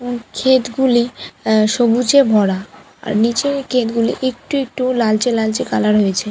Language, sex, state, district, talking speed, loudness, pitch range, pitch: Bengali, female, West Bengal, Purulia, 140 wpm, -16 LUFS, 215-255 Hz, 235 Hz